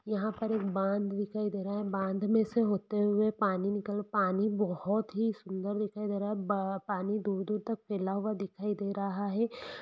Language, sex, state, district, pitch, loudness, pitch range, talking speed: Hindi, female, Jharkhand, Jamtara, 205 Hz, -32 LUFS, 200-210 Hz, 205 wpm